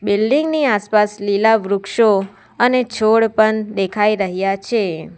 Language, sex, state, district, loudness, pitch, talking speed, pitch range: Gujarati, female, Gujarat, Valsad, -16 LUFS, 210 Hz, 125 wpm, 195-225 Hz